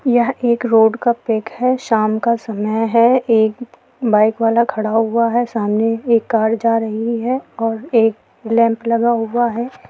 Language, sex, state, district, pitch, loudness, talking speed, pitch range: Hindi, female, Bihar, Sitamarhi, 230 Hz, -16 LUFS, 170 wpm, 225-240 Hz